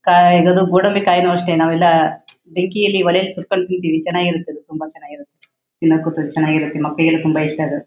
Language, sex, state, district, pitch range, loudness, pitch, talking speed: Kannada, female, Karnataka, Shimoga, 155-180 Hz, -15 LUFS, 165 Hz, 150 wpm